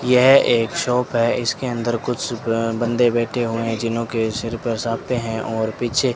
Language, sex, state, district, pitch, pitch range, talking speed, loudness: Hindi, male, Rajasthan, Bikaner, 115 Hz, 115-125 Hz, 205 wpm, -20 LUFS